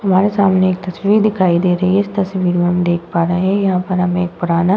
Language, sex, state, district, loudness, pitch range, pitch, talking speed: Hindi, female, Uttar Pradesh, Budaun, -15 LUFS, 175-195 Hz, 185 Hz, 275 wpm